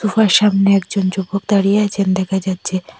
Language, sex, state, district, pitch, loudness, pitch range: Bengali, female, Assam, Hailakandi, 195 Hz, -16 LUFS, 190-205 Hz